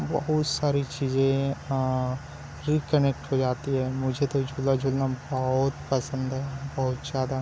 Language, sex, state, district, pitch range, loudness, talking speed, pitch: Hindi, male, Chhattisgarh, Bilaspur, 130-140 Hz, -27 LUFS, 155 wpm, 135 Hz